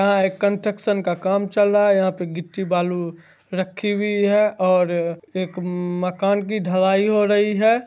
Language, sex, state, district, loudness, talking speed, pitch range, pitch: Maithili, male, Bihar, Supaul, -20 LUFS, 175 wpm, 180-205 Hz, 195 Hz